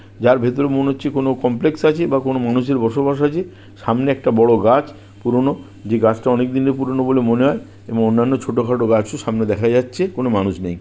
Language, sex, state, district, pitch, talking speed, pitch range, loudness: Bengali, male, West Bengal, Purulia, 125 Hz, 210 wpm, 115-135 Hz, -17 LUFS